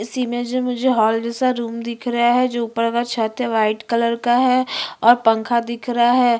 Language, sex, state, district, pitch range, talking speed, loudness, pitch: Hindi, female, Chhattisgarh, Bastar, 230-245 Hz, 140 wpm, -19 LUFS, 235 Hz